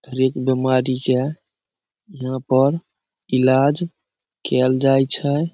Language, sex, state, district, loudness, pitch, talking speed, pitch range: Maithili, male, Bihar, Samastipur, -19 LUFS, 130 Hz, 95 wpm, 130-145 Hz